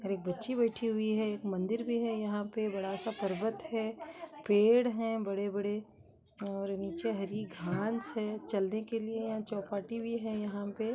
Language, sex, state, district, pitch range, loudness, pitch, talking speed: Kumaoni, female, Uttarakhand, Uttarkashi, 200-225 Hz, -34 LUFS, 215 Hz, 175 wpm